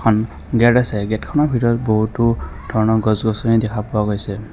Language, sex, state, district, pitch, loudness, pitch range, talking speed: Assamese, male, Assam, Kamrup Metropolitan, 110 Hz, -18 LUFS, 110-115 Hz, 145 wpm